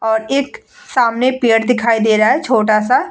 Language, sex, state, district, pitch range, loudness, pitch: Hindi, female, Bihar, Vaishali, 220-250 Hz, -14 LUFS, 225 Hz